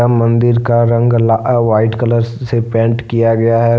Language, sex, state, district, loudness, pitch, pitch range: Hindi, male, Jharkhand, Deoghar, -13 LUFS, 115 Hz, 115-120 Hz